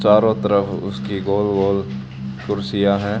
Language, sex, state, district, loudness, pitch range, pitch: Hindi, male, Haryana, Charkhi Dadri, -20 LUFS, 65-105 Hz, 100 Hz